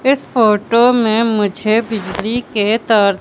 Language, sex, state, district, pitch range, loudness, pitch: Hindi, female, Madhya Pradesh, Katni, 210-235 Hz, -14 LUFS, 220 Hz